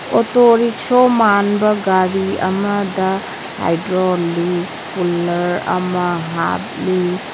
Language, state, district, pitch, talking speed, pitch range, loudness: Manipuri, Manipur, Imphal West, 185 Hz, 75 wpm, 175-205 Hz, -16 LUFS